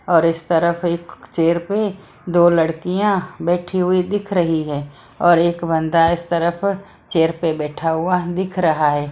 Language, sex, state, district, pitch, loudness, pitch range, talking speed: Hindi, female, Maharashtra, Mumbai Suburban, 170 Hz, -18 LUFS, 165-180 Hz, 165 wpm